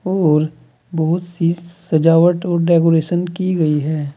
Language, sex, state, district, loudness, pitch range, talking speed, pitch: Hindi, male, Uttar Pradesh, Saharanpur, -16 LUFS, 155-175 Hz, 130 wpm, 170 Hz